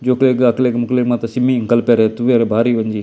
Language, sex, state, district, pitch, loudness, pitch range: Tulu, male, Karnataka, Dakshina Kannada, 120 Hz, -15 LUFS, 115-125 Hz